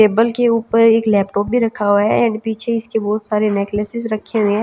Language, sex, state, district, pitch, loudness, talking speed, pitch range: Hindi, female, Chhattisgarh, Raipur, 220 Hz, -16 LUFS, 220 wpm, 210-230 Hz